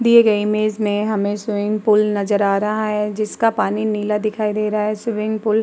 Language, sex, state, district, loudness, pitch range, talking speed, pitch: Hindi, female, Uttar Pradesh, Muzaffarnagar, -19 LUFS, 210-215 Hz, 225 wpm, 215 Hz